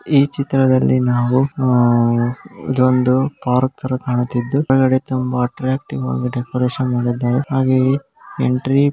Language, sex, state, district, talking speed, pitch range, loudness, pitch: Kannada, male, Karnataka, Gulbarga, 115 wpm, 125-135 Hz, -17 LUFS, 130 Hz